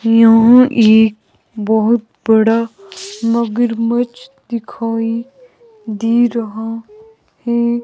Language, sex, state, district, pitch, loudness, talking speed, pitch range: Hindi, female, Himachal Pradesh, Shimla, 230 Hz, -14 LUFS, 70 wpm, 220-240 Hz